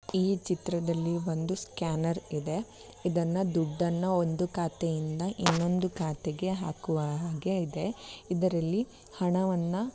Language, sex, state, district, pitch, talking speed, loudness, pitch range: Kannada, female, Karnataka, Bellary, 175 Hz, 105 wpm, -31 LUFS, 165-185 Hz